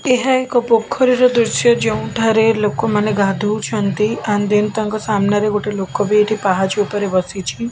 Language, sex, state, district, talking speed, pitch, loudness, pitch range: Odia, female, Odisha, Khordha, 130 wpm, 210 Hz, -16 LUFS, 205-225 Hz